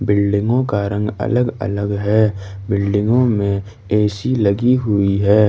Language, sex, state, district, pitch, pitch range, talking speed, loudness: Hindi, male, Jharkhand, Ranchi, 105 Hz, 100-110 Hz, 140 wpm, -17 LUFS